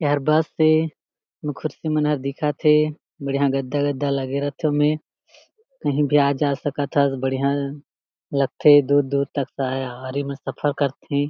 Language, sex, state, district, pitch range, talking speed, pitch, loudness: Chhattisgarhi, male, Chhattisgarh, Jashpur, 140-150 Hz, 150 wpm, 145 Hz, -22 LUFS